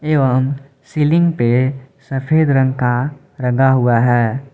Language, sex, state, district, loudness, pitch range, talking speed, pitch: Hindi, male, Jharkhand, Palamu, -16 LUFS, 125-140 Hz, 120 wpm, 135 Hz